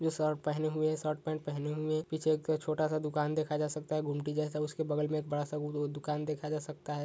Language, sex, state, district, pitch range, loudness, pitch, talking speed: Hindi, male, Chhattisgarh, Sukma, 150-155 Hz, -34 LUFS, 150 Hz, 245 wpm